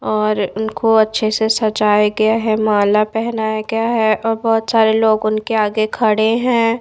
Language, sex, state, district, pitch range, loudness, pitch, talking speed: Hindi, female, Odisha, Nuapada, 215-225 Hz, -16 LUFS, 220 Hz, 165 wpm